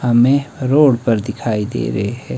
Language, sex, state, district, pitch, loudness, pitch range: Hindi, male, Himachal Pradesh, Shimla, 120 Hz, -16 LUFS, 115-135 Hz